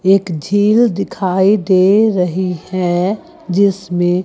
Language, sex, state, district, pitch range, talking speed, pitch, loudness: Hindi, female, Chandigarh, Chandigarh, 180-200 Hz, 100 wpm, 185 Hz, -14 LUFS